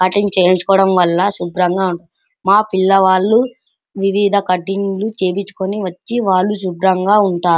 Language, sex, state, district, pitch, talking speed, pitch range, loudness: Telugu, male, Andhra Pradesh, Anantapur, 190 Hz, 105 wpm, 185-200 Hz, -15 LUFS